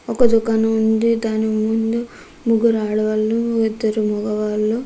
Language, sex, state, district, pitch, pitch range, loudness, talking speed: Telugu, female, Andhra Pradesh, Krishna, 225 Hz, 215-230 Hz, -18 LUFS, 125 wpm